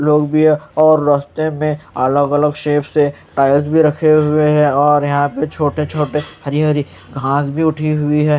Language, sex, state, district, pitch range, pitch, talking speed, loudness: Hindi, male, Chandigarh, Chandigarh, 145-155 Hz, 150 Hz, 195 wpm, -15 LUFS